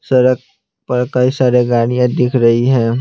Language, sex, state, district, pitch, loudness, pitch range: Hindi, male, Bihar, Patna, 125 Hz, -14 LUFS, 120-125 Hz